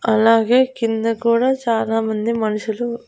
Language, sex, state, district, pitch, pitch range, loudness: Telugu, female, Andhra Pradesh, Annamaya, 230 Hz, 225-240 Hz, -18 LUFS